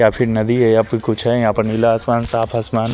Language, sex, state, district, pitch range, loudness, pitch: Hindi, male, Chandigarh, Chandigarh, 110-115 Hz, -16 LUFS, 115 Hz